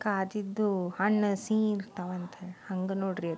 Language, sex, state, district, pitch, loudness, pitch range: Kannada, female, Karnataka, Belgaum, 195 Hz, -31 LUFS, 185-210 Hz